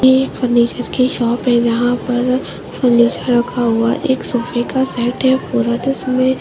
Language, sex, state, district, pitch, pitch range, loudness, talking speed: Hindi, female, Uttarakhand, Tehri Garhwal, 245 Hz, 240-260 Hz, -16 LUFS, 185 wpm